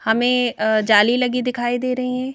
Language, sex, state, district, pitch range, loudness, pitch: Hindi, female, Madhya Pradesh, Bhopal, 225-250 Hz, -18 LUFS, 245 Hz